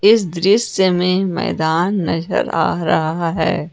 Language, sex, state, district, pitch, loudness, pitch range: Hindi, female, Jharkhand, Ranchi, 180 Hz, -17 LUFS, 165-195 Hz